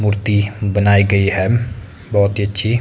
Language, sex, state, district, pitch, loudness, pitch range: Hindi, male, Himachal Pradesh, Shimla, 100 Hz, -16 LUFS, 100-105 Hz